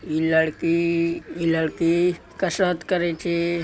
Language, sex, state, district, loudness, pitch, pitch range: Hindi, male, Bihar, Araria, -22 LUFS, 170 Hz, 165-175 Hz